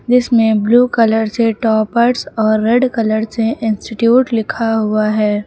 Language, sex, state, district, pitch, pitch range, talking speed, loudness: Hindi, female, Uttar Pradesh, Lucknow, 225 Hz, 215-235 Hz, 140 wpm, -14 LUFS